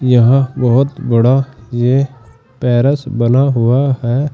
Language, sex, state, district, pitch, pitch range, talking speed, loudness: Hindi, male, Uttar Pradesh, Saharanpur, 130 Hz, 120-135 Hz, 110 wpm, -13 LUFS